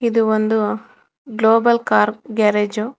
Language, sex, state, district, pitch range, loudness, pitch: Kannada, female, Karnataka, Bangalore, 215-230 Hz, -17 LUFS, 220 Hz